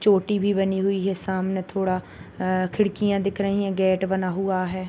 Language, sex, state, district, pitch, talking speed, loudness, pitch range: Hindi, male, Bihar, Bhagalpur, 190 Hz, 195 wpm, -24 LUFS, 185-200 Hz